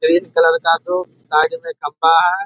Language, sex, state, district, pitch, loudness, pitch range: Hindi, male, Bihar, Darbhanga, 175 Hz, -16 LUFS, 165-190 Hz